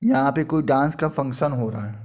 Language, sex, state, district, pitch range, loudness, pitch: Hindi, male, Uttar Pradesh, Muzaffarnagar, 125-155 Hz, -22 LUFS, 140 Hz